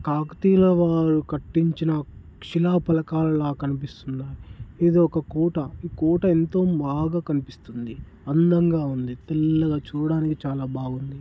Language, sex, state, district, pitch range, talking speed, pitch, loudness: Telugu, male, Telangana, Nalgonda, 135-165 Hz, 95 wpm, 155 Hz, -23 LUFS